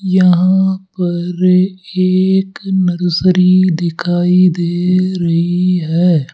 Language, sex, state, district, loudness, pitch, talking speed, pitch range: Hindi, male, Rajasthan, Jaipur, -13 LUFS, 180 Hz, 75 wpm, 175-185 Hz